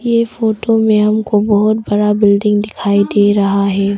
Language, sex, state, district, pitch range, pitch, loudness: Hindi, female, Arunachal Pradesh, Longding, 205-220 Hz, 210 Hz, -13 LUFS